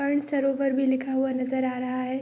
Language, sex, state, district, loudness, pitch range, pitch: Hindi, female, Bihar, Araria, -26 LUFS, 260-275 Hz, 265 Hz